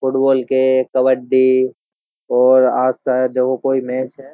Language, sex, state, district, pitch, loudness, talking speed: Hindi, male, Uttar Pradesh, Jyotiba Phule Nagar, 130 Hz, -16 LUFS, 140 wpm